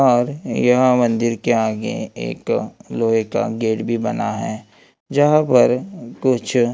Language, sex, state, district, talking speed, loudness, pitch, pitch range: Hindi, male, Maharashtra, Gondia, 135 wpm, -19 LUFS, 120 Hz, 115-130 Hz